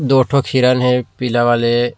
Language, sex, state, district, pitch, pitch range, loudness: Chhattisgarhi, male, Chhattisgarh, Rajnandgaon, 125 Hz, 120-130 Hz, -15 LUFS